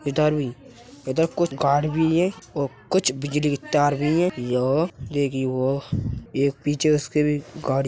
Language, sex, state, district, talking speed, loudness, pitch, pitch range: Hindi, male, Uttar Pradesh, Hamirpur, 160 wpm, -23 LUFS, 145 Hz, 135-150 Hz